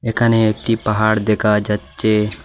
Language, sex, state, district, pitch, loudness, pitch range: Bengali, male, Assam, Hailakandi, 110 Hz, -17 LUFS, 105-115 Hz